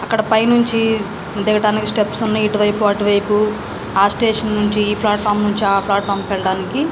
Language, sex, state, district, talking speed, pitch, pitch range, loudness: Telugu, female, Andhra Pradesh, Srikakulam, 175 wpm, 210 Hz, 200-220 Hz, -16 LUFS